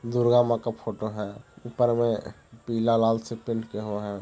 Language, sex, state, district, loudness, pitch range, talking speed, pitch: Hindi, male, Bihar, Jahanabad, -26 LUFS, 110-120 Hz, 185 wpm, 115 Hz